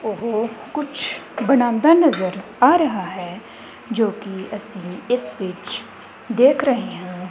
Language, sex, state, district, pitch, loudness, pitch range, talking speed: Punjabi, female, Punjab, Kapurthala, 220 Hz, -19 LUFS, 190-255 Hz, 115 wpm